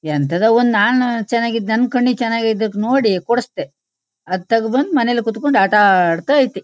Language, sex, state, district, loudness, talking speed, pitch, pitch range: Kannada, female, Karnataka, Shimoga, -16 LUFS, 145 wpm, 230 Hz, 205-245 Hz